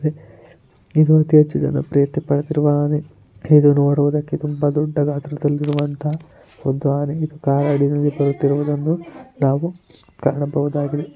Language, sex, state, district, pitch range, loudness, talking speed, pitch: Kannada, female, Karnataka, Chamarajanagar, 140-150 Hz, -18 LUFS, 90 wpm, 145 Hz